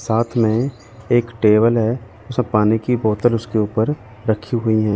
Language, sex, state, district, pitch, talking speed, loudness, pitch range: Hindi, male, Chandigarh, Chandigarh, 110 Hz, 170 wpm, -18 LUFS, 110-120 Hz